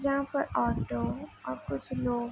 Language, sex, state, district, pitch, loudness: Hindi, female, Uttar Pradesh, Budaun, 240 Hz, -32 LUFS